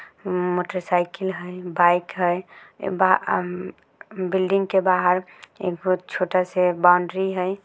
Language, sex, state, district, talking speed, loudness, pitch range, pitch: Maithili, female, Bihar, Samastipur, 110 wpm, -22 LUFS, 180-190 Hz, 180 Hz